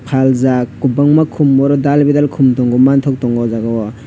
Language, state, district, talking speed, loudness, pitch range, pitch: Kokborok, Tripura, West Tripura, 175 wpm, -12 LUFS, 120-140 Hz, 130 Hz